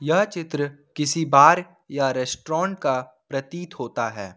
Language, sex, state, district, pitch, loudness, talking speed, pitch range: Hindi, male, Jharkhand, Ranchi, 145 Hz, -22 LUFS, 135 wpm, 130-165 Hz